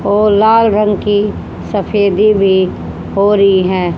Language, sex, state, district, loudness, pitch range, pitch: Hindi, female, Haryana, Charkhi Dadri, -12 LUFS, 195-210 Hz, 205 Hz